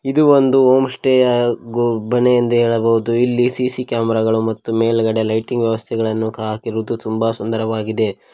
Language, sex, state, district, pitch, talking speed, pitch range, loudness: Kannada, male, Karnataka, Koppal, 115 Hz, 150 wpm, 110-125 Hz, -17 LUFS